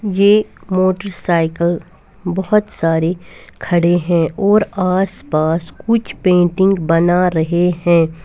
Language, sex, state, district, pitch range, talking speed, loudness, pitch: Hindi, female, Punjab, Fazilka, 170-195 Hz, 110 wpm, -15 LUFS, 175 Hz